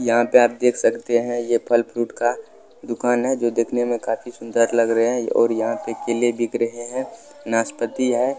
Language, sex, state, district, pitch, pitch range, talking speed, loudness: Hindi, male, Bihar, Supaul, 120 Hz, 115-120 Hz, 205 wpm, -21 LUFS